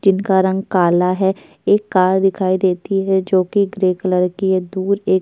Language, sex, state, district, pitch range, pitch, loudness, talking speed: Hindi, female, Uttar Pradesh, Jyotiba Phule Nagar, 185-195 Hz, 190 Hz, -17 LUFS, 195 wpm